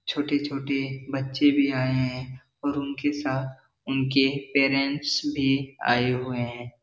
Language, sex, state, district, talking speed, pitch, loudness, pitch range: Hindi, male, Bihar, Jahanabad, 130 wpm, 135 Hz, -25 LUFS, 130-140 Hz